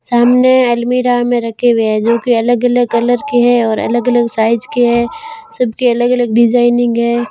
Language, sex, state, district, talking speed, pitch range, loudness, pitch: Hindi, female, Rajasthan, Barmer, 170 wpm, 235-245 Hz, -12 LUFS, 240 Hz